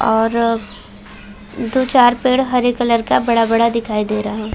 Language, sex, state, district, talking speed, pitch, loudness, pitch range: Hindi, female, Chhattisgarh, Bilaspur, 160 wpm, 230 Hz, -16 LUFS, 225-245 Hz